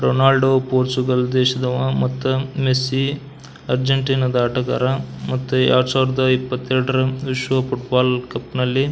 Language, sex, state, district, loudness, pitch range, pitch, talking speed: Kannada, male, Karnataka, Belgaum, -19 LUFS, 125-130 Hz, 130 Hz, 100 wpm